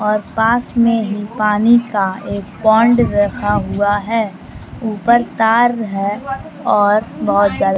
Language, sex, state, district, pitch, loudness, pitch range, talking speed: Hindi, female, Bihar, Kaimur, 210 Hz, -15 LUFS, 205-230 Hz, 140 wpm